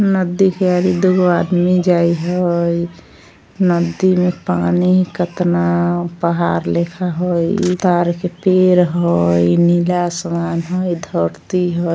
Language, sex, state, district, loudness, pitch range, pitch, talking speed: Maithili, female, Bihar, Vaishali, -16 LUFS, 170-180 Hz, 175 Hz, 125 wpm